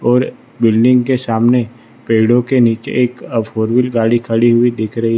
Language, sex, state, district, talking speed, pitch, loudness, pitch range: Hindi, male, Gujarat, Valsad, 185 wpm, 120 Hz, -14 LUFS, 115-125 Hz